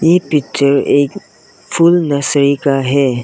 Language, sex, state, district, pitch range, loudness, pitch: Hindi, male, Arunachal Pradesh, Lower Dibang Valley, 140-160 Hz, -13 LUFS, 140 Hz